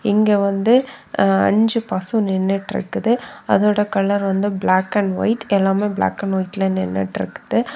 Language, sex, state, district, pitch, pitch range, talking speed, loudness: Tamil, female, Tamil Nadu, Kanyakumari, 200 Hz, 195-215 Hz, 145 wpm, -19 LUFS